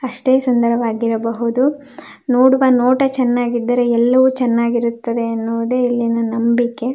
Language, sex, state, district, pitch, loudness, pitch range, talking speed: Kannada, female, Karnataka, Belgaum, 240 Hz, -16 LUFS, 235-255 Hz, 85 wpm